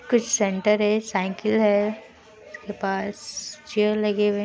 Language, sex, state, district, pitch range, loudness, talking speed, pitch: Hindi, female, Bihar, Kishanganj, 205-215 Hz, -23 LUFS, 150 wpm, 210 Hz